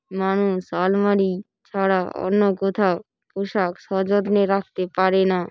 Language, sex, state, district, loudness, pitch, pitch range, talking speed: Bengali, female, West Bengal, Paschim Medinipur, -21 LUFS, 195 Hz, 185-200 Hz, 110 wpm